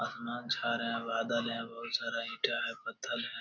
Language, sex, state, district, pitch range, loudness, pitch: Hindi, male, Bihar, Jamui, 115-120 Hz, -35 LUFS, 115 Hz